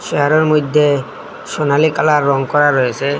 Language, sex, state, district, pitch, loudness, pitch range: Bengali, male, Assam, Hailakandi, 145 Hz, -14 LUFS, 140-150 Hz